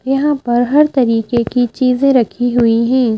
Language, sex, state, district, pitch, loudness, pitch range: Hindi, female, Madhya Pradesh, Bhopal, 245 Hz, -13 LUFS, 235-265 Hz